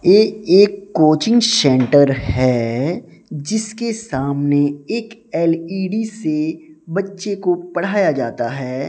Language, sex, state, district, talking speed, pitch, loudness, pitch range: Hindi, male, Odisha, Sambalpur, 100 wpm, 170 Hz, -17 LUFS, 145-205 Hz